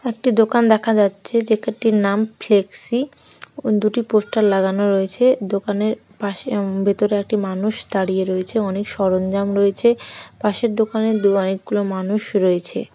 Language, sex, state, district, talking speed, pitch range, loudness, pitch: Bengali, female, West Bengal, Jhargram, 140 wpm, 195-220 Hz, -19 LUFS, 205 Hz